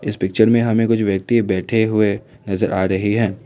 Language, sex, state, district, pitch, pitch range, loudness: Hindi, male, Assam, Kamrup Metropolitan, 105 Hz, 95-115 Hz, -17 LUFS